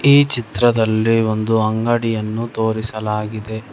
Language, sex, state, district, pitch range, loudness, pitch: Kannada, male, Karnataka, Bangalore, 110-120 Hz, -18 LUFS, 110 Hz